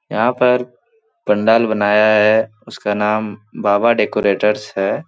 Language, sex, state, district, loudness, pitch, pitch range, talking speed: Hindi, male, Bihar, Lakhisarai, -16 LUFS, 110 Hz, 105-120 Hz, 130 wpm